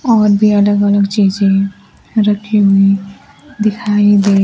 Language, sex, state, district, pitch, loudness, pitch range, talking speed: Hindi, female, Bihar, Kaimur, 205 Hz, -12 LUFS, 195-210 Hz, 120 wpm